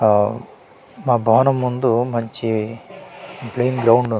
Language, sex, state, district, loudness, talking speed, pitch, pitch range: Telugu, male, Andhra Pradesh, Manyam, -18 LUFS, 115 wpm, 115 Hz, 115-125 Hz